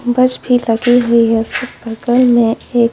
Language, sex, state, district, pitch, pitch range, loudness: Hindi, female, Bihar, Patna, 240 Hz, 230-245 Hz, -13 LUFS